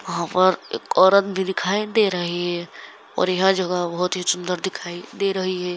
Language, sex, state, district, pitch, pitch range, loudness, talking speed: Hindi, female, Bihar, Saran, 185 Hz, 175-190 Hz, -21 LUFS, 200 wpm